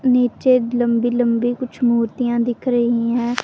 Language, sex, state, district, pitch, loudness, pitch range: Hindi, female, Punjab, Pathankot, 240 Hz, -18 LUFS, 235-250 Hz